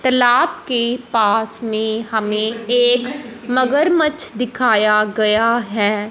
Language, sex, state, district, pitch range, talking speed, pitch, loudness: Hindi, female, Punjab, Fazilka, 220-250 Hz, 100 wpm, 235 Hz, -16 LUFS